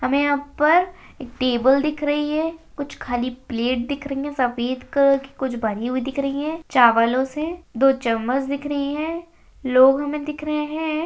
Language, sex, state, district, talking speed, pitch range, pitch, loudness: Hindi, female, Rajasthan, Nagaur, 190 wpm, 255-300 Hz, 280 Hz, -21 LUFS